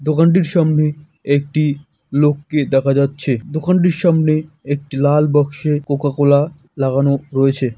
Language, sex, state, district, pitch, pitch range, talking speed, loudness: Bengali, male, West Bengal, Dakshin Dinajpur, 145 Hz, 140-155 Hz, 115 wpm, -16 LUFS